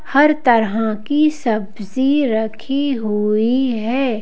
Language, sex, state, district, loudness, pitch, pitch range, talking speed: Hindi, female, Madhya Pradesh, Bhopal, -17 LUFS, 235 Hz, 220-275 Hz, 100 wpm